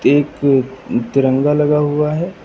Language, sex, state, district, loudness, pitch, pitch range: Hindi, male, Uttar Pradesh, Lucknow, -16 LUFS, 145 Hz, 135-150 Hz